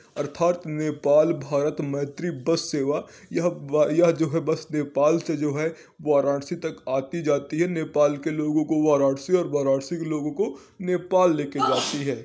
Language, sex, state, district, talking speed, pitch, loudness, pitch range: Hindi, male, Uttar Pradesh, Varanasi, 170 wpm, 155 Hz, -24 LUFS, 145-165 Hz